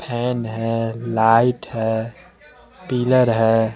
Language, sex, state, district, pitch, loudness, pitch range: Hindi, male, Bihar, West Champaran, 115 Hz, -19 LUFS, 115-125 Hz